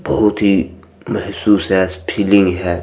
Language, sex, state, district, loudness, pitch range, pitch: Maithili, male, Bihar, Madhepura, -15 LUFS, 95-105 Hz, 100 Hz